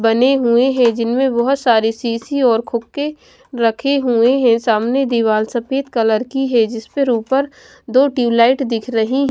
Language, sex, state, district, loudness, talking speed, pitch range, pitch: Hindi, female, Chhattisgarh, Raipur, -16 LUFS, 160 wpm, 230-270 Hz, 240 Hz